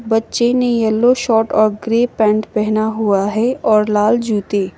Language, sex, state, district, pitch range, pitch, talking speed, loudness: Hindi, female, Sikkim, Gangtok, 210-235 Hz, 220 Hz, 165 wpm, -15 LUFS